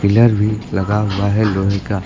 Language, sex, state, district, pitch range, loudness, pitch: Hindi, male, Uttar Pradesh, Lucknow, 100-105 Hz, -16 LUFS, 105 Hz